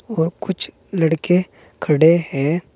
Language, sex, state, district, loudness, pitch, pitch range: Hindi, male, Uttar Pradesh, Saharanpur, -18 LUFS, 165 Hz, 155-180 Hz